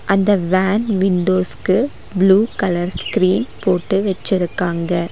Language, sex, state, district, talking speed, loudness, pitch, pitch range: Tamil, female, Tamil Nadu, Nilgiris, 95 wpm, -17 LUFS, 190 Hz, 180-195 Hz